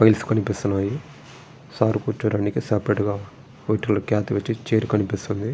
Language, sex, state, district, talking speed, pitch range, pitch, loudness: Telugu, male, Andhra Pradesh, Srikakulam, 75 wpm, 105-120 Hz, 110 Hz, -23 LUFS